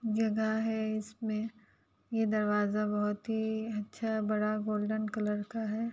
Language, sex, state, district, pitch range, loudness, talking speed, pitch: Hindi, female, Uttar Pradesh, Ghazipur, 210-220 Hz, -33 LUFS, 130 wpm, 215 Hz